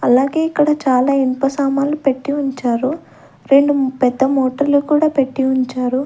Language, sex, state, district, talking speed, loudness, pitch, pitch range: Telugu, female, Andhra Pradesh, Sri Satya Sai, 130 wpm, -16 LUFS, 275 Hz, 260-285 Hz